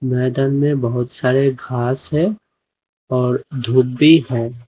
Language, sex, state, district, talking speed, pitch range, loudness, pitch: Hindi, male, Uttar Pradesh, Lalitpur, 130 wpm, 125-140 Hz, -17 LUFS, 130 Hz